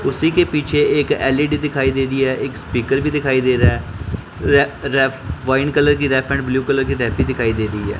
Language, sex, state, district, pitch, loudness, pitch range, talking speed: Hindi, male, Punjab, Pathankot, 135 Hz, -17 LUFS, 120-140 Hz, 210 wpm